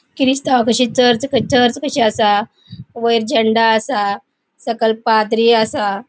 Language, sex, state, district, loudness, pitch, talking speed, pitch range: Konkani, female, Goa, North and South Goa, -15 LUFS, 235 Hz, 120 wpm, 220-250 Hz